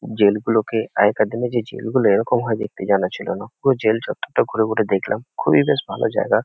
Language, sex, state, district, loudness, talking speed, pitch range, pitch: Bengali, male, West Bengal, Kolkata, -20 LUFS, 185 wpm, 110-115 Hz, 110 Hz